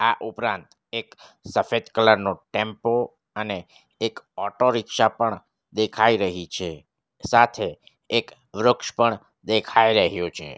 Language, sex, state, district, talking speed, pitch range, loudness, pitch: Gujarati, male, Gujarat, Valsad, 125 wpm, 95-115 Hz, -23 LUFS, 110 Hz